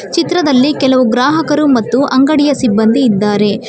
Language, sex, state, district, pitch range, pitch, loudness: Kannada, female, Karnataka, Bangalore, 230-295 Hz, 260 Hz, -11 LUFS